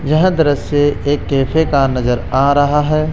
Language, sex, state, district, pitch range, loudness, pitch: Hindi, male, Rajasthan, Jaipur, 135-155 Hz, -14 LUFS, 145 Hz